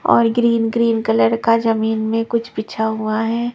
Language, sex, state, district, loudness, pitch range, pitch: Hindi, female, Punjab, Pathankot, -17 LUFS, 220-230 Hz, 225 Hz